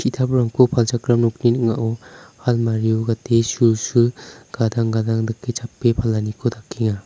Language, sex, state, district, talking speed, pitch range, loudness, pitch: Garo, male, Meghalaya, South Garo Hills, 110 wpm, 115-120 Hz, -19 LUFS, 115 Hz